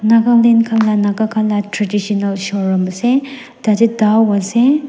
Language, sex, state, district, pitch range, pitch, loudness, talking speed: Nagamese, female, Nagaland, Dimapur, 205-235 Hz, 215 Hz, -14 LUFS, 145 wpm